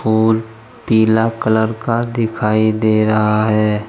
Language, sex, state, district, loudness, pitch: Hindi, male, Jharkhand, Deoghar, -15 LUFS, 110 Hz